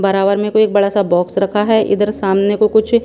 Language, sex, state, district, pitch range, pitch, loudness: Hindi, female, Punjab, Pathankot, 195-215 Hz, 205 Hz, -14 LUFS